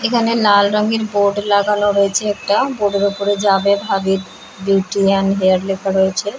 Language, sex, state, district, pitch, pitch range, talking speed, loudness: Bengali, female, West Bengal, Jalpaiguri, 200 Hz, 195-205 Hz, 180 wpm, -16 LUFS